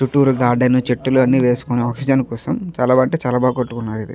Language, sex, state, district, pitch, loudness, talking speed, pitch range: Telugu, male, Andhra Pradesh, Chittoor, 125 Hz, -17 LUFS, 190 wpm, 120-130 Hz